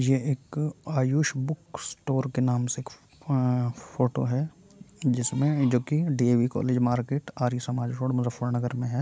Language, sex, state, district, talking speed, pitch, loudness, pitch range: Hindi, male, Uttar Pradesh, Muzaffarnagar, 145 wpm, 130 Hz, -27 LUFS, 125-145 Hz